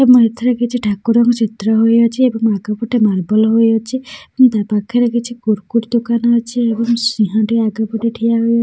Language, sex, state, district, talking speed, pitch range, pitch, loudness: Odia, female, Odisha, Khordha, 200 wpm, 220-235 Hz, 230 Hz, -15 LUFS